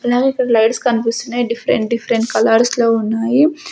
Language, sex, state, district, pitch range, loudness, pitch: Telugu, female, Andhra Pradesh, Sri Satya Sai, 230-245 Hz, -15 LUFS, 235 Hz